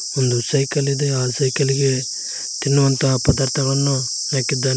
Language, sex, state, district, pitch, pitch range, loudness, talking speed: Kannada, male, Karnataka, Koppal, 135 Hz, 130-140 Hz, -19 LUFS, 100 wpm